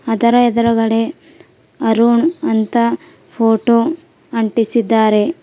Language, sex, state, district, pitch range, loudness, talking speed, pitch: Kannada, female, Karnataka, Bidar, 225-240 Hz, -15 LUFS, 65 wpm, 230 Hz